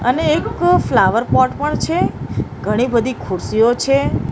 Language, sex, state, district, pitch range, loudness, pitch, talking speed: Gujarati, female, Maharashtra, Mumbai Suburban, 230-275 Hz, -16 LUFS, 245 Hz, 125 wpm